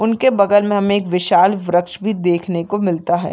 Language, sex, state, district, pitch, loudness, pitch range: Hindi, female, Maharashtra, Nagpur, 185 Hz, -16 LUFS, 175-205 Hz